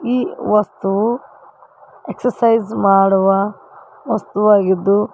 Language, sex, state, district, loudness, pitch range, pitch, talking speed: Kannada, female, Karnataka, Koppal, -16 LUFS, 195-230 Hz, 210 Hz, 70 wpm